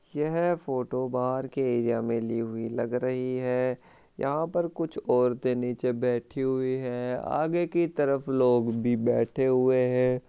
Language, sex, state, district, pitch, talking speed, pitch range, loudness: Hindi, male, Rajasthan, Churu, 125 Hz, 155 wpm, 125-135 Hz, -27 LUFS